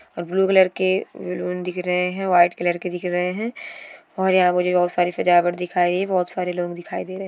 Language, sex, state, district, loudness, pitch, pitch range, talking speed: Hindi, female, Bihar, Gopalganj, -21 LUFS, 180 Hz, 175-190 Hz, 230 wpm